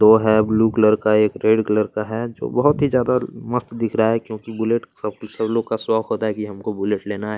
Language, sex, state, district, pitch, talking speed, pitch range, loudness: Hindi, male, Chhattisgarh, Kabirdham, 110 Hz, 260 wpm, 105-115 Hz, -20 LUFS